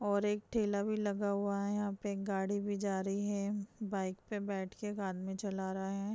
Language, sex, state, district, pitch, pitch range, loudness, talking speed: Hindi, female, Uttar Pradesh, Jalaun, 200 Hz, 195-205 Hz, -37 LUFS, 225 wpm